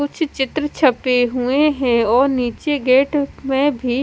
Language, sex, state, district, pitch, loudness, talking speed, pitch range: Hindi, female, Punjab, Kapurthala, 270 Hz, -17 LUFS, 150 wpm, 250-290 Hz